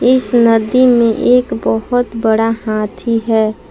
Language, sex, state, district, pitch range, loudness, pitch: Hindi, female, Jharkhand, Palamu, 220-245 Hz, -13 LUFS, 230 Hz